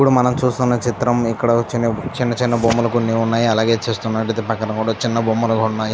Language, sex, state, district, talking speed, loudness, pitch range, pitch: Telugu, male, Andhra Pradesh, Chittoor, 170 wpm, -18 LUFS, 115-120 Hz, 115 Hz